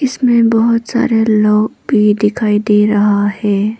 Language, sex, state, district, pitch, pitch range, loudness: Hindi, female, Arunachal Pradesh, Papum Pare, 215 Hz, 210-230 Hz, -12 LUFS